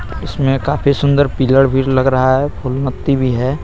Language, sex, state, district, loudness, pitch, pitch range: Hindi, male, Jharkhand, Garhwa, -15 LUFS, 135 Hz, 130-140 Hz